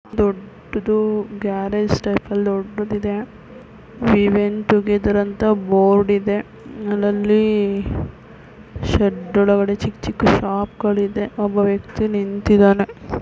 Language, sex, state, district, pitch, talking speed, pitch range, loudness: Kannada, female, Karnataka, Mysore, 205 Hz, 95 wpm, 200-210 Hz, -19 LUFS